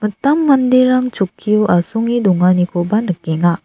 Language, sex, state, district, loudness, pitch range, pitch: Garo, female, Meghalaya, South Garo Hills, -14 LUFS, 180-250 Hz, 210 Hz